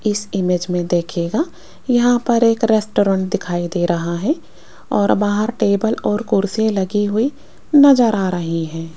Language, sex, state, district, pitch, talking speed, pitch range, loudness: Hindi, female, Rajasthan, Jaipur, 205 Hz, 155 wpm, 180-230 Hz, -17 LUFS